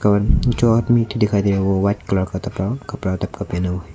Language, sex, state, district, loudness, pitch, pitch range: Hindi, male, Arunachal Pradesh, Longding, -19 LUFS, 100 Hz, 95-115 Hz